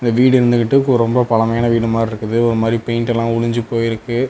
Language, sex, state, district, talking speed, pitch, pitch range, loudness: Tamil, male, Tamil Nadu, Namakkal, 155 wpm, 115 Hz, 115-120 Hz, -16 LUFS